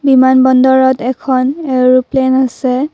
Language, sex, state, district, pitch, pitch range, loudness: Assamese, female, Assam, Kamrup Metropolitan, 260 Hz, 255-265 Hz, -11 LUFS